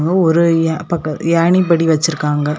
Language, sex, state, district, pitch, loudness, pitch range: Tamil, female, Tamil Nadu, Kanyakumari, 165 Hz, -14 LUFS, 155-170 Hz